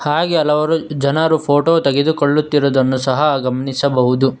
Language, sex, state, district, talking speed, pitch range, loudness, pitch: Kannada, male, Karnataka, Bangalore, 95 wpm, 135-155 Hz, -15 LUFS, 145 Hz